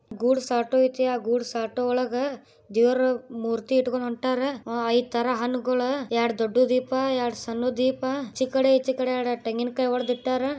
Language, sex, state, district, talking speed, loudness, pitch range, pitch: Kannada, female, Karnataka, Bijapur, 170 wpm, -25 LUFS, 240-260 Hz, 250 Hz